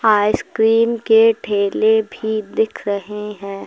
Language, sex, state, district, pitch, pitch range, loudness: Hindi, female, Uttar Pradesh, Lucknow, 220 Hz, 205-220 Hz, -17 LUFS